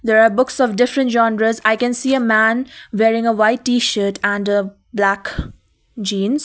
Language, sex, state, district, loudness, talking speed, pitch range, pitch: English, female, Sikkim, Gangtok, -17 LUFS, 175 wpm, 210-245 Hz, 225 Hz